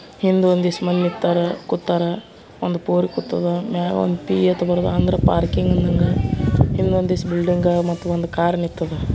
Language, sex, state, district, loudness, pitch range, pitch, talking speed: Kannada, male, Karnataka, Bijapur, -19 LUFS, 170-180 Hz, 175 Hz, 120 wpm